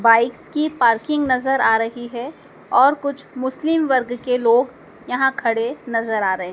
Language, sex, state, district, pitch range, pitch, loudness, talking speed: Hindi, female, Madhya Pradesh, Dhar, 230-275 Hz, 250 Hz, -19 LUFS, 165 wpm